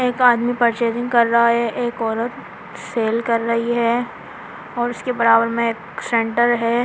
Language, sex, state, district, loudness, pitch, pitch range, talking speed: Hindi, female, Delhi, New Delhi, -19 LUFS, 235 Hz, 230-240 Hz, 165 wpm